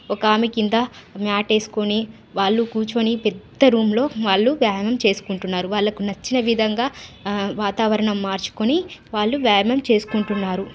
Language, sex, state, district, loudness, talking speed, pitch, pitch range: Telugu, female, Telangana, Nalgonda, -20 LUFS, 125 wpm, 215 Hz, 205-230 Hz